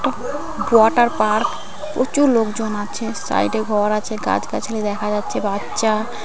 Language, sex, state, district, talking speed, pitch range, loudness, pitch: Bengali, female, West Bengal, Kolkata, 125 wpm, 210-230 Hz, -19 LUFS, 220 Hz